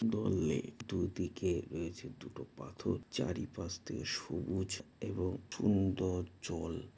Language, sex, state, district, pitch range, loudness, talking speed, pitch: Bengali, male, West Bengal, North 24 Parganas, 90-100 Hz, -38 LUFS, 95 wpm, 95 Hz